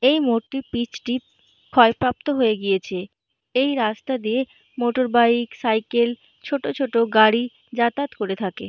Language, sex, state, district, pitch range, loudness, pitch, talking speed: Bengali, female, Jharkhand, Jamtara, 225-255 Hz, -21 LUFS, 240 Hz, 130 wpm